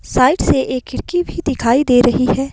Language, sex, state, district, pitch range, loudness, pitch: Hindi, female, Himachal Pradesh, Shimla, 245-280 Hz, -15 LUFS, 255 Hz